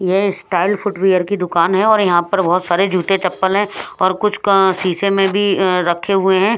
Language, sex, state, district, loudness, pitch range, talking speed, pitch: Hindi, female, Punjab, Pathankot, -15 LUFS, 180-200 Hz, 220 wpm, 190 Hz